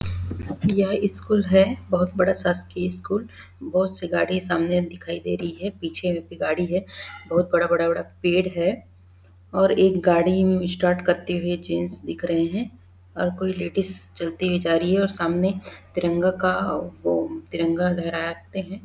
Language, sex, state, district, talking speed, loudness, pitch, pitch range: Hindi, female, Chhattisgarh, Bastar, 160 wpm, -23 LUFS, 180 Hz, 170-190 Hz